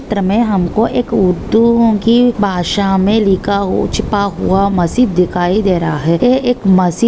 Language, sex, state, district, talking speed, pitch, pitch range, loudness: Hindi, female, Maharashtra, Nagpur, 170 wpm, 200 Hz, 185-230 Hz, -13 LUFS